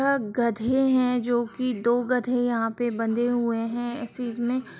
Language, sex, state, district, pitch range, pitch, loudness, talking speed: Hindi, female, Bihar, Sitamarhi, 235-250 Hz, 240 Hz, -25 LUFS, 185 wpm